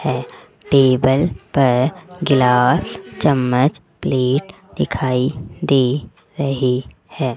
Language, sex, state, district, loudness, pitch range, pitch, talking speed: Hindi, female, Rajasthan, Jaipur, -18 LUFS, 125-145 Hz, 130 Hz, 80 wpm